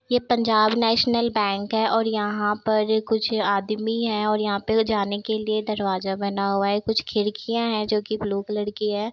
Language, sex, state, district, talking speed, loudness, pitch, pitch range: Hindi, female, Bihar, Begusarai, 195 wpm, -23 LUFS, 215 Hz, 205-225 Hz